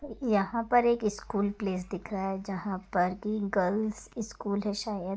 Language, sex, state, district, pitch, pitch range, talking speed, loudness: Hindi, female, Uttar Pradesh, Gorakhpur, 205 Hz, 195-215 Hz, 185 wpm, -30 LUFS